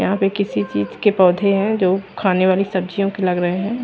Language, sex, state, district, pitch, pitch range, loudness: Hindi, female, Haryana, Rohtak, 190 Hz, 185-200 Hz, -18 LUFS